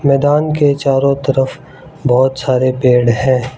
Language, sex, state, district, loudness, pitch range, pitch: Hindi, male, Arunachal Pradesh, Lower Dibang Valley, -13 LUFS, 130-145 Hz, 135 Hz